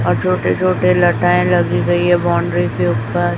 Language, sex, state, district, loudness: Hindi, female, Chhattisgarh, Raipur, -15 LUFS